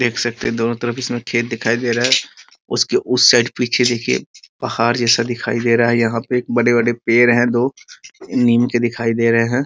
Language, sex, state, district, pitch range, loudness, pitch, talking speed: Hindi, male, Bihar, Muzaffarpur, 115-120 Hz, -16 LUFS, 120 Hz, 215 wpm